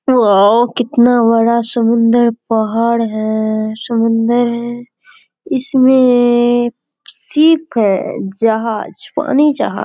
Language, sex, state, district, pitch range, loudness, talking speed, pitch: Hindi, female, Bihar, Kishanganj, 225-245 Hz, -13 LUFS, 85 wpm, 235 Hz